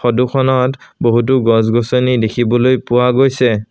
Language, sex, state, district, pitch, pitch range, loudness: Assamese, male, Assam, Sonitpur, 125 Hz, 120-130 Hz, -13 LUFS